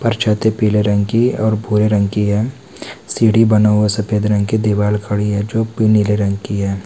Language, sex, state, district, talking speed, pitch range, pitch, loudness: Hindi, male, West Bengal, Kolkata, 220 wpm, 105-110 Hz, 105 Hz, -15 LUFS